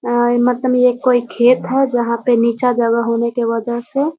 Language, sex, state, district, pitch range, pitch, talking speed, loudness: Hindi, female, Bihar, Muzaffarpur, 235-250 Hz, 240 Hz, 215 wpm, -15 LUFS